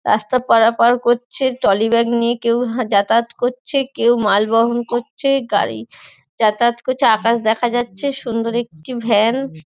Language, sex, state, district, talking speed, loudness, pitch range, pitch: Bengali, female, West Bengal, North 24 Parganas, 145 wpm, -17 LUFS, 220-245 Hz, 235 Hz